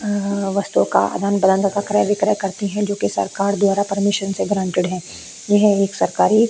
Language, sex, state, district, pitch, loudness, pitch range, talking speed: Hindi, female, Uttarakhand, Tehri Garhwal, 200 Hz, -18 LUFS, 195-205 Hz, 175 wpm